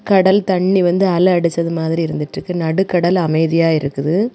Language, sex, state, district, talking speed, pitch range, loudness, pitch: Tamil, female, Tamil Nadu, Kanyakumari, 150 wpm, 160-190 Hz, -16 LUFS, 175 Hz